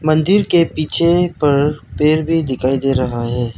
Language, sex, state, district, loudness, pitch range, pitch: Hindi, male, Arunachal Pradesh, Lower Dibang Valley, -15 LUFS, 130-165 Hz, 150 Hz